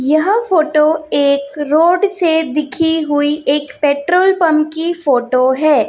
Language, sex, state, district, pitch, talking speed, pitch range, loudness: Hindi, female, Chhattisgarh, Raipur, 305 Hz, 130 wpm, 285-330 Hz, -14 LUFS